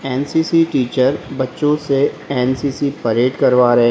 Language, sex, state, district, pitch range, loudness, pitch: Hindi, male, Uttar Pradesh, Lalitpur, 125-145 Hz, -16 LUFS, 135 Hz